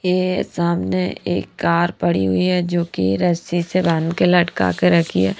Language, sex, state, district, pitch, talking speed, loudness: Hindi, female, Haryana, Rohtak, 170 Hz, 190 wpm, -18 LUFS